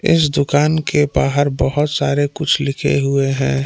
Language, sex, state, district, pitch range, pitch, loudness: Hindi, male, Jharkhand, Palamu, 140-150 Hz, 145 Hz, -16 LUFS